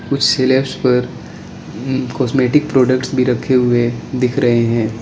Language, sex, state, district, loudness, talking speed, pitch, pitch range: Hindi, male, Arunachal Pradesh, Lower Dibang Valley, -15 LUFS, 145 wpm, 130 Hz, 120-130 Hz